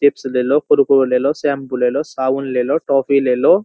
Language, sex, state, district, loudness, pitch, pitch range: Hindi, male, Uttar Pradesh, Jyotiba Phule Nagar, -16 LUFS, 135 Hz, 130-140 Hz